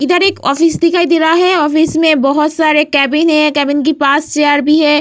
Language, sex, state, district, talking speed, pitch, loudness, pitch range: Hindi, female, Bihar, Vaishali, 225 wpm, 305 Hz, -11 LUFS, 290-330 Hz